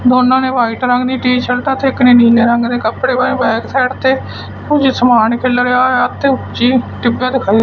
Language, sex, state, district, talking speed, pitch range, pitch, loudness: Punjabi, male, Punjab, Fazilka, 220 wpm, 240-260 Hz, 250 Hz, -12 LUFS